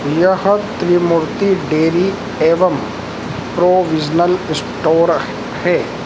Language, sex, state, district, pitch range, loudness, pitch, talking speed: Hindi, male, Madhya Pradesh, Dhar, 160-185 Hz, -15 LUFS, 175 Hz, 70 wpm